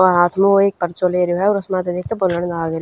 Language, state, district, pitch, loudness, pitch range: Haryanvi, Haryana, Rohtak, 180 Hz, -17 LUFS, 175-195 Hz